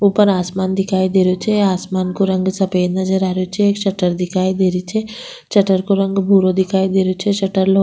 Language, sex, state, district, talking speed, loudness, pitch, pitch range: Rajasthani, female, Rajasthan, Nagaur, 230 wpm, -16 LUFS, 190 Hz, 185-195 Hz